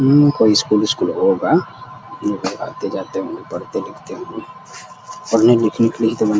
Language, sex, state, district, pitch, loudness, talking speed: Hindi, male, Uttar Pradesh, Deoria, 140 Hz, -17 LUFS, 185 wpm